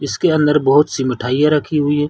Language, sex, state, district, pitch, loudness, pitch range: Hindi, male, Chhattisgarh, Sarguja, 150 Hz, -15 LUFS, 140-150 Hz